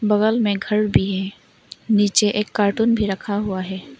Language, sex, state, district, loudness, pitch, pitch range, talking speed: Hindi, female, Arunachal Pradesh, Longding, -20 LUFS, 205 Hz, 195-210 Hz, 180 wpm